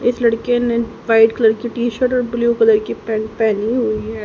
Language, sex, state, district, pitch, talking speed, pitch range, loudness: Hindi, female, Haryana, Rohtak, 230 Hz, 225 wpm, 220-240 Hz, -17 LUFS